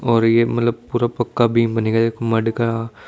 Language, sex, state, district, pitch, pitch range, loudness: Hindi, male, Chandigarh, Chandigarh, 115 Hz, 115-120 Hz, -18 LUFS